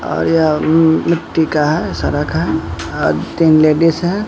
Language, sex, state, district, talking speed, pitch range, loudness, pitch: Hindi, male, Bihar, Katihar, 170 wpm, 155-165 Hz, -14 LUFS, 160 Hz